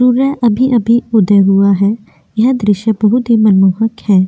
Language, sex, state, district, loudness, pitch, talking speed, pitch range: Hindi, female, Chhattisgarh, Korba, -11 LUFS, 220 Hz, 155 wpm, 200-240 Hz